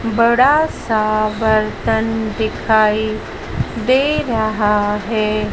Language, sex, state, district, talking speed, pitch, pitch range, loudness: Hindi, female, Madhya Pradesh, Dhar, 75 wpm, 220 Hz, 215-230 Hz, -16 LUFS